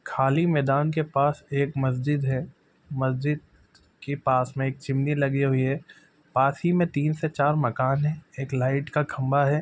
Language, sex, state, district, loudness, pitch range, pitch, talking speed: Maithili, male, Bihar, Supaul, -25 LUFS, 135-150 Hz, 140 Hz, 180 wpm